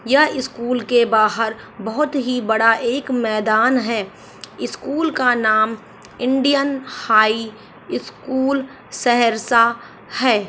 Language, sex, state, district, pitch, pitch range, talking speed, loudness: Hindi, female, Bihar, Saharsa, 240 Hz, 220-265 Hz, 105 wpm, -18 LUFS